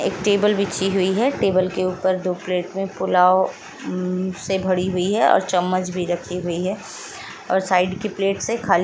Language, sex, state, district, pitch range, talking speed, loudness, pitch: Hindi, female, Uttar Pradesh, Jalaun, 180-195 Hz, 195 wpm, -21 LUFS, 185 Hz